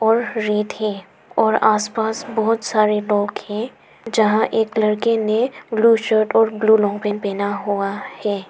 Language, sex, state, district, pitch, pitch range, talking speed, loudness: Hindi, female, Arunachal Pradesh, Papum Pare, 215 Hz, 210-225 Hz, 155 wpm, -19 LUFS